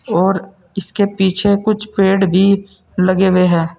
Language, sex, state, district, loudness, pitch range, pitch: Hindi, male, Uttar Pradesh, Saharanpur, -14 LUFS, 185-200 Hz, 195 Hz